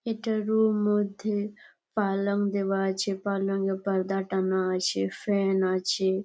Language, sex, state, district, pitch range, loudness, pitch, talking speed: Bengali, female, West Bengal, Jalpaiguri, 190-205 Hz, -27 LUFS, 195 Hz, 125 wpm